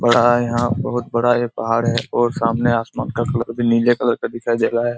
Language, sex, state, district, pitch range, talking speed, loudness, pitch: Hindi, male, Chhattisgarh, Raigarh, 115-120 Hz, 240 wpm, -18 LUFS, 120 Hz